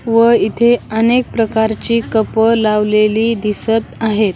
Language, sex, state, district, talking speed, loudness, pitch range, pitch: Marathi, female, Maharashtra, Washim, 110 wpm, -14 LUFS, 215-230 Hz, 225 Hz